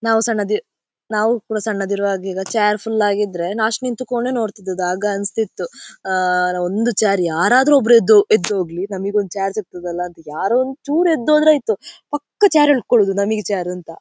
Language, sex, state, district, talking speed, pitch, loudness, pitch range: Kannada, female, Karnataka, Dakshina Kannada, 180 wpm, 210 Hz, -18 LUFS, 190-235 Hz